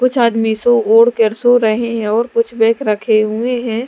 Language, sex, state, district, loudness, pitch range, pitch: Hindi, female, Bihar, Katihar, -14 LUFS, 220-240 Hz, 230 Hz